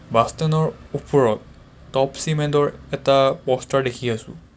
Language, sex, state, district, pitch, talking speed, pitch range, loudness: Assamese, male, Assam, Kamrup Metropolitan, 135 Hz, 145 wpm, 125-145 Hz, -21 LUFS